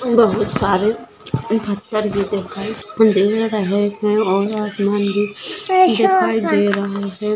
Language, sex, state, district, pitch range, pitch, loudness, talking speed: Hindi, female, Maharashtra, Pune, 200-220 Hz, 210 Hz, -18 LUFS, 115 wpm